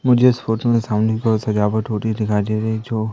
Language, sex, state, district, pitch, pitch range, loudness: Hindi, male, Madhya Pradesh, Katni, 110 Hz, 110-115 Hz, -19 LUFS